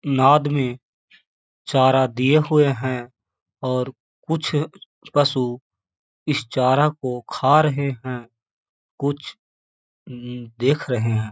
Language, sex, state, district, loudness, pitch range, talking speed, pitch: Hindi, male, Uttar Pradesh, Hamirpur, -21 LUFS, 120-145 Hz, 105 wpm, 130 Hz